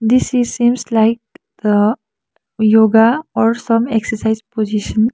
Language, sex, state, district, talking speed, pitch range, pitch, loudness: English, female, Sikkim, Gangtok, 115 wpm, 220-240 Hz, 225 Hz, -15 LUFS